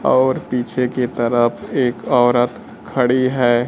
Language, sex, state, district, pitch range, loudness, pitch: Hindi, male, Bihar, Kaimur, 120-130 Hz, -18 LUFS, 125 Hz